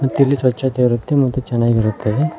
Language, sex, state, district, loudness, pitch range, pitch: Kannada, male, Karnataka, Koppal, -17 LUFS, 120-135 Hz, 130 Hz